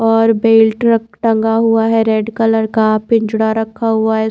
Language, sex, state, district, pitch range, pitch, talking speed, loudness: Hindi, female, Haryana, Charkhi Dadri, 220-225 Hz, 225 Hz, 180 wpm, -13 LUFS